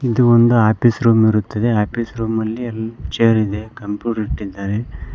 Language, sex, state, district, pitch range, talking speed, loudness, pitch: Kannada, male, Karnataka, Koppal, 105-115 Hz, 150 wpm, -17 LUFS, 110 Hz